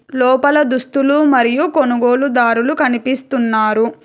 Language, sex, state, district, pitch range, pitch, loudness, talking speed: Telugu, female, Telangana, Hyderabad, 240-285 Hz, 260 Hz, -14 LUFS, 75 wpm